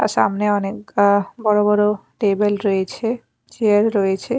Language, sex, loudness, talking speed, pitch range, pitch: Bengali, female, -18 LUFS, 135 wpm, 200-215 Hz, 210 Hz